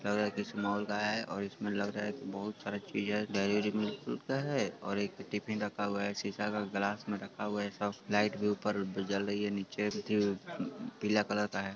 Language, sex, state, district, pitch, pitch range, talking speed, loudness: Hindi, male, Bihar, Sitamarhi, 105 Hz, 100-105 Hz, 230 wpm, -35 LUFS